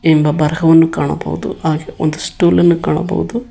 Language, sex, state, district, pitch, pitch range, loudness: Kannada, male, Karnataka, Koppal, 160 Hz, 155-170 Hz, -14 LUFS